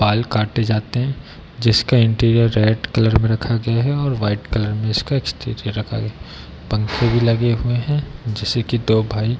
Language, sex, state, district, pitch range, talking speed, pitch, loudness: Hindi, male, Bihar, Darbhanga, 110-120 Hz, 205 wpm, 115 Hz, -19 LUFS